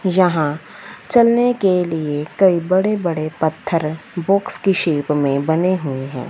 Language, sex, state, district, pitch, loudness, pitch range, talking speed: Hindi, female, Punjab, Fazilka, 170 Hz, -17 LUFS, 155-190 Hz, 135 wpm